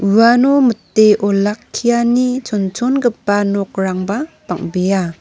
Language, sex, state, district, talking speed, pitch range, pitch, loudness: Garo, female, Meghalaya, North Garo Hills, 70 wpm, 195-245 Hz, 210 Hz, -15 LUFS